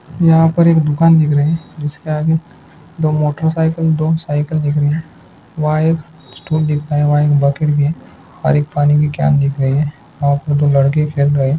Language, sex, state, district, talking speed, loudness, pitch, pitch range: Hindi, male, Andhra Pradesh, Chittoor, 80 wpm, -15 LUFS, 150 Hz, 145-160 Hz